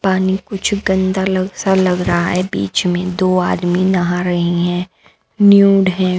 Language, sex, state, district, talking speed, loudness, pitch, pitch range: Hindi, female, Bihar, West Champaran, 165 wpm, -15 LUFS, 185 Hz, 180-190 Hz